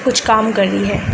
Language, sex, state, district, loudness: Hindi, female, Uttar Pradesh, Varanasi, -15 LUFS